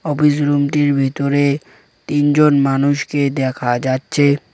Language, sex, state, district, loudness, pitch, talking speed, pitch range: Bengali, male, West Bengal, Cooch Behar, -16 LUFS, 140 Hz, 95 wpm, 135-145 Hz